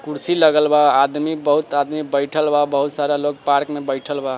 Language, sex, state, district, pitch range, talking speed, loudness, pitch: Bajjika, male, Bihar, Vaishali, 140-150 Hz, 205 wpm, -18 LUFS, 145 Hz